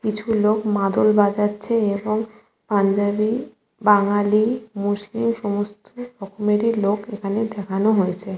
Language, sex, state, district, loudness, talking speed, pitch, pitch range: Bengali, female, West Bengal, Kolkata, -21 LUFS, 95 wpm, 210 Hz, 205-220 Hz